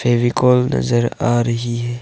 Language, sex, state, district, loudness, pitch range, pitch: Hindi, male, Arunachal Pradesh, Longding, -17 LUFS, 120-125 Hz, 120 Hz